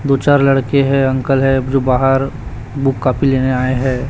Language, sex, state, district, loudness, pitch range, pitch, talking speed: Hindi, male, Chhattisgarh, Raipur, -14 LUFS, 130-135 Hz, 135 Hz, 190 wpm